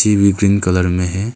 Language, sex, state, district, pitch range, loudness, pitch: Hindi, male, Arunachal Pradesh, Longding, 90-100 Hz, -15 LUFS, 100 Hz